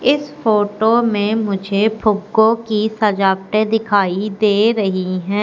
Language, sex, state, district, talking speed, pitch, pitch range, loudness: Hindi, female, Madhya Pradesh, Katni, 120 wpm, 210 Hz, 200-220 Hz, -16 LUFS